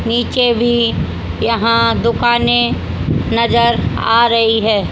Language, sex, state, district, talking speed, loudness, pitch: Hindi, female, Haryana, Rohtak, 100 wpm, -14 LUFS, 230 Hz